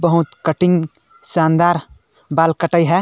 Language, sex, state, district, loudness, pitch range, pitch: Sadri, male, Chhattisgarh, Jashpur, -16 LUFS, 165-175 Hz, 170 Hz